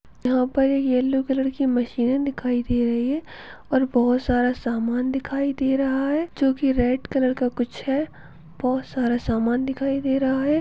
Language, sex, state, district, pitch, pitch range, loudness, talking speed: Hindi, female, Chhattisgarh, Bastar, 260 Hz, 245-270 Hz, -23 LUFS, 185 wpm